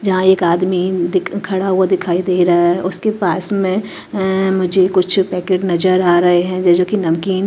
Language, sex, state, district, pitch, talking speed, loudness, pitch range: Hindi, female, Chhattisgarh, Raipur, 185 Hz, 200 wpm, -15 LUFS, 180-190 Hz